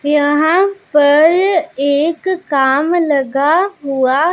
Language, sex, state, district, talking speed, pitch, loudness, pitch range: Hindi, female, Punjab, Pathankot, 85 wpm, 300 Hz, -13 LUFS, 285-350 Hz